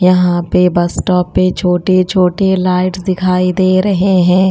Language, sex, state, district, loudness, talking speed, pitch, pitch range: Hindi, female, Chandigarh, Chandigarh, -12 LUFS, 145 wpm, 185 Hz, 180-185 Hz